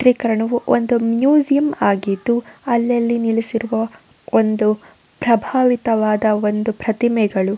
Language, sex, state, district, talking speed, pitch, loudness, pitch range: Kannada, female, Karnataka, Raichur, 80 wpm, 230 Hz, -18 LUFS, 215-240 Hz